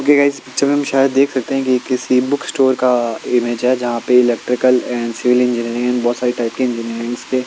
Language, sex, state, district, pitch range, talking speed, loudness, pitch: Hindi, male, Chandigarh, Chandigarh, 120-130 Hz, 240 wpm, -16 LUFS, 125 Hz